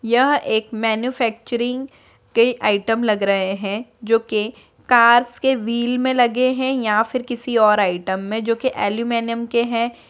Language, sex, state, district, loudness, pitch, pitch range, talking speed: Hindi, female, Bihar, Muzaffarpur, -19 LUFS, 235 Hz, 220-245 Hz, 155 wpm